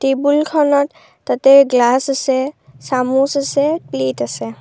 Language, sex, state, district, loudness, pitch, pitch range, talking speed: Assamese, female, Assam, Kamrup Metropolitan, -15 LUFS, 270 Hz, 240-285 Hz, 105 wpm